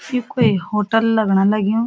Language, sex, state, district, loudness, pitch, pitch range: Garhwali, female, Uttarakhand, Uttarkashi, -17 LUFS, 215 Hz, 205-225 Hz